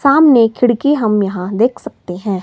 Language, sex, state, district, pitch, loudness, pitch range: Hindi, female, Himachal Pradesh, Shimla, 230 Hz, -13 LUFS, 195-270 Hz